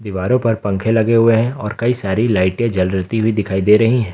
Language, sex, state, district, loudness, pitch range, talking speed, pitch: Hindi, male, Jharkhand, Ranchi, -16 LUFS, 95-115 Hz, 230 wpm, 110 Hz